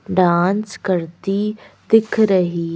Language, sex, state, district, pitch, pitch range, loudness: Hindi, female, Madhya Pradesh, Bhopal, 190 Hz, 175-210 Hz, -18 LUFS